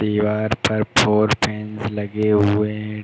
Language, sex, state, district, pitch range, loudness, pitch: Hindi, male, Uttar Pradesh, Hamirpur, 105-110 Hz, -19 LUFS, 105 Hz